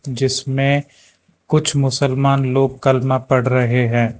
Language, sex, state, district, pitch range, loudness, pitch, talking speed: Hindi, male, Karnataka, Bangalore, 130-140 Hz, -17 LUFS, 135 Hz, 115 wpm